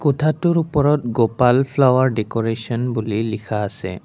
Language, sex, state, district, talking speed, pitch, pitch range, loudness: Assamese, male, Assam, Kamrup Metropolitan, 120 wpm, 120 Hz, 110-145 Hz, -19 LUFS